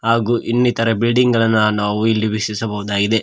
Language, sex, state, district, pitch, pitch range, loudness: Kannada, male, Karnataka, Koppal, 110 Hz, 105-115 Hz, -17 LUFS